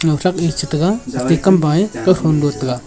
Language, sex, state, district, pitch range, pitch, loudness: Wancho, male, Arunachal Pradesh, Longding, 150-185 Hz, 165 Hz, -16 LUFS